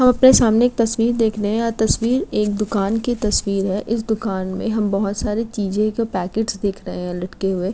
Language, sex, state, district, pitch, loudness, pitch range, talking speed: Hindi, female, Uttar Pradesh, Gorakhpur, 215 Hz, -19 LUFS, 200-230 Hz, 215 wpm